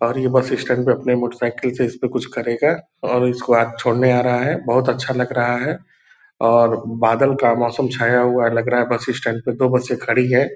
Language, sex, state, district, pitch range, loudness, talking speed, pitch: Hindi, male, Bihar, Purnia, 120-125 Hz, -18 LUFS, 225 wpm, 125 Hz